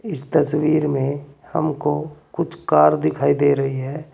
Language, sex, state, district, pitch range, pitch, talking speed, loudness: Hindi, male, Uttar Pradesh, Saharanpur, 135-150 Hz, 145 Hz, 145 wpm, -19 LUFS